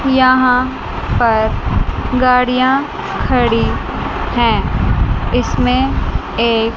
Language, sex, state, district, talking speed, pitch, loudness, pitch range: Hindi, female, Chandigarh, Chandigarh, 60 wpm, 255 Hz, -15 LUFS, 235-260 Hz